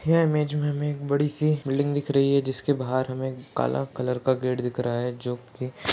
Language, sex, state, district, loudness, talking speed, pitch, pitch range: Hindi, male, Uttar Pradesh, Etah, -26 LUFS, 235 wpm, 130 Hz, 125-145 Hz